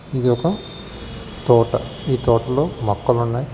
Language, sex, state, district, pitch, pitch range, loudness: Telugu, male, Telangana, Hyderabad, 125 Hz, 120-135 Hz, -19 LUFS